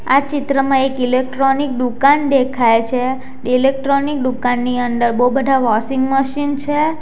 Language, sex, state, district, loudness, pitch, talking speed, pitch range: Gujarati, female, Gujarat, Valsad, -16 LUFS, 265 Hz, 135 wpm, 250-275 Hz